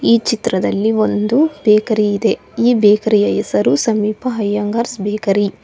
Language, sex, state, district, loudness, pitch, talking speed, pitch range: Kannada, female, Karnataka, Bangalore, -15 LUFS, 215 Hz, 130 wpm, 205-230 Hz